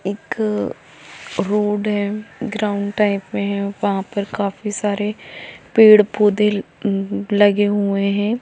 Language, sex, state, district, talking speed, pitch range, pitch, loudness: Hindi, female, Jharkhand, Jamtara, 115 wpm, 200-210 Hz, 205 Hz, -18 LUFS